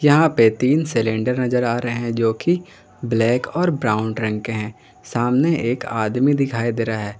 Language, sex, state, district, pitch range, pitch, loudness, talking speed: Hindi, male, Jharkhand, Garhwa, 110-135 Hz, 120 Hz, -20 LUFS, 190 wpm